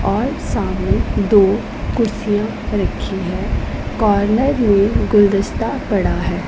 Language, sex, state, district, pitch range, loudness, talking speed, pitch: Hindi, female, Punjab, Pathankot, 200-220 Hz, -17 LUFS, 100 wpm, 210 Hz